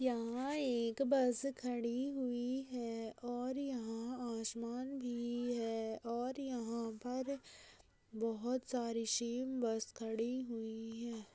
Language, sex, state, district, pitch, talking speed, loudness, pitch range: Hindi, female, Uttar Pradesh, Budaun, 240 Hz, 110 wpm, -40 LUFS, 230-255 Hz